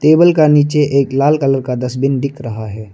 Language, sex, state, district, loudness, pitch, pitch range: Hindi, male, Arunachal Pradesh, Lower Dibang Valley, -13 LUFS, 135 Hz, 125-150 Hz